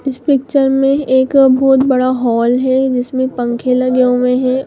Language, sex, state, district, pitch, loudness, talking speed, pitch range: Hindi, female, Bihar, Muzaffarpur, 260 Hz, -13 LUFS, 165 wpm, 250-265 Hz